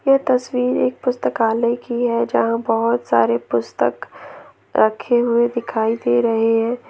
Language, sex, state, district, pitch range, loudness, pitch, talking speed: Hindi, female, Jharkhand, Ranchi, 225-240 Hz, -18 LUFS, 235 Hz, 140 wpm